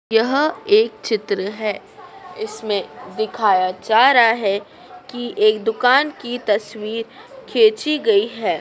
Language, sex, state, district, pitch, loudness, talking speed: Hindi, female, Madhya Pradesh, Dhar, 240 Hz, -18 LUFS, 120 wpm